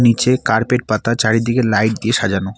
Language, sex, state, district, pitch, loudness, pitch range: Bengali, male, West Bengal, Alipurduar, 115 Hz, -16 LUFS, 110-120 Hz